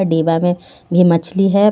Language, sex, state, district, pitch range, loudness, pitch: Hindi, female, Jharkhand, Garhwa, 165-190 Hz, -15 LUFS, 175 Hz